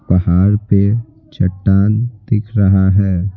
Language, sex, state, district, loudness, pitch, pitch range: Hindi, male, Bihar, Patna, -14 LUFS, 100 Hz, 95-105 Hz